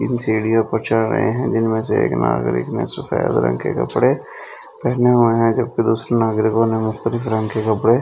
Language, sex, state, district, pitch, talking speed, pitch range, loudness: Hindi, male, Delhi, New Delhi, 115 Hz, 195 wpm, 110-115 Hz, -18 LUFS